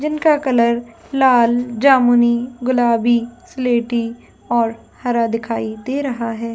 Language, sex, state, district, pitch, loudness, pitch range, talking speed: Hindi, female, Jharkhand, Jamtara, 240 Hz, -17 LUFS, 230-255 Hz, 110 wpm